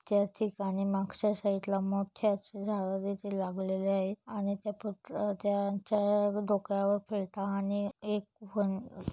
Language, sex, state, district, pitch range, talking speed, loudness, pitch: Marathi, female, Maharashtra, Chandrapur, 195-205 Hz, 125 wpm, -33 LUFS, 200 Hz